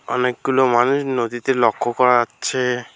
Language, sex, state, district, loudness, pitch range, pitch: Bengali, male, West Bengal, Alipurduar, -18 LUFS, 120-130 Hz, 125 Hz